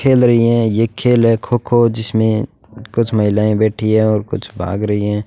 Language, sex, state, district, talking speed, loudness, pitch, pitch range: Hindi, male, Rajasthan, Bikaner, 205 wpm, -15 LUFS, 110 Hz, 105-115 Hz